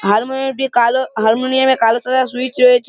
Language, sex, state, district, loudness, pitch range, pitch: Bengali, male, West Bengal, Malda, -15 LUFS, 235-265 Hz, 255 Hz